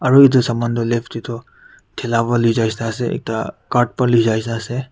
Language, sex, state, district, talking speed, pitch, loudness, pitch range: Nagamese, male, Nagaland, Kohima, 245 wpm, 120 Hz, -18 LUFS, 115-125 Hz